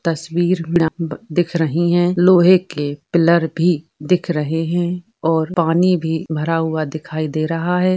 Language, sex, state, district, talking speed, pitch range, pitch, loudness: Hindi, female, Uttar Pradesh, Etah, 150 wpm, 160-175 Hz, 165 Hz, -17 LUFS